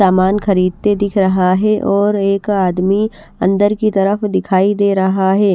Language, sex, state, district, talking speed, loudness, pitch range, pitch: Hindi, female, Bihar, West Champaran, 160 wpm, -14 LUFS, 190-205 Hz, 195 Hz